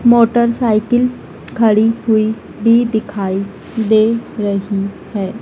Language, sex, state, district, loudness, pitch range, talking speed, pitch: Hindi, female, Madhya Pradesh, Dhar, -15 LUFS, 205-235 Hz, 100 wpm, 220 Hz